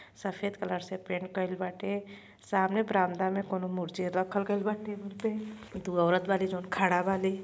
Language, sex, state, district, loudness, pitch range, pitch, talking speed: Bhojpuri, female, Uttar Pradesh, Gorakhpur, -31 LUFS, 185-200 Hz, 190 Hz, 160 wpm